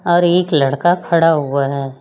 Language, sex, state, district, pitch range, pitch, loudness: Hindi, female, Chhattisgarh, Raipur, 140-175 Hz, 165 Hz, -15 LUFS